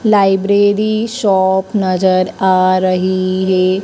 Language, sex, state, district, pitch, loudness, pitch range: Hindi, male, Madhya Pradesh, Dhar, 190 Hz, -13 LUFS, 185-205 Hz